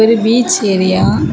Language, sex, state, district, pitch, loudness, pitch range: Tamil, female, Tamil Nadu, Kanyakumari, 205 Hz, -12 LUFS, 185-225 Hz